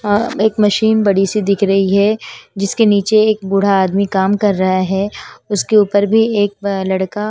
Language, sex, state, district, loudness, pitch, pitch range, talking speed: Hindi, female, Haryana, Charkhi Dadri, -14 LUFS, 200 Hz, 195-210 Hz, 180 wpm